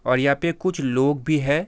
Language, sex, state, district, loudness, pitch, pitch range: Hindi, male, Uttar Pradesh, Hamirpur, -22 LUFS, 145 Hz, 135-160 Hz